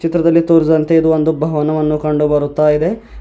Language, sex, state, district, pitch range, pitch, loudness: Kannada, male, Karnataka, Bidar, 150-165 Hz, 155 Hz, -14 LUFS